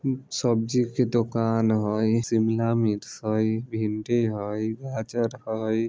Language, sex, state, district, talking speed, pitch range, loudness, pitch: Maithili, male, Bihar, Vaishali, 120 wpm, 110-120 Hz, -25 LUFS, 115 Hz